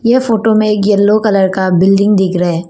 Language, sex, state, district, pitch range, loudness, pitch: Hindi, female, Arunachal Pradesh, Papum Pare, 190-215 Hz, -11 LUFS, 205 Hz